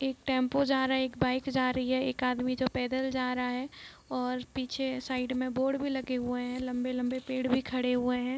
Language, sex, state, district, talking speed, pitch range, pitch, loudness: Hindi, female, Bihar, East Champaran, 220 wpm, 250-260 Hz, 255 Hz, -31 LUFS